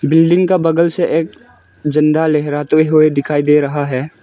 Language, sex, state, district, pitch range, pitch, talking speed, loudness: Hindi, male, Arunachal Pradesh, Lower Dibang Valley, 145-165 Hz, 155 Hz, 170 wpm, -14 LUFS